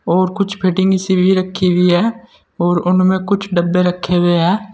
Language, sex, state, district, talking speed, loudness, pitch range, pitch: Hindi, male, Uttar Pradesh, Saharanpur, 190 wpm, -15 LUFS, 175-190 Hz, 185 Hz